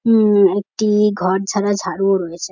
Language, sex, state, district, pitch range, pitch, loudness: Bengali, female, West Bengal, North 24 Parganas, 190-210 Hz, 200 Hz, -16 LUFS